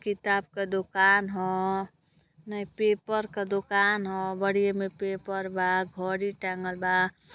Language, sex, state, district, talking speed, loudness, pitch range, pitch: Hindi, female, Uttar Pradesh, Gorakhpur, 130 wpm, -28 LUFS, 185-200 Hz, 195 Hz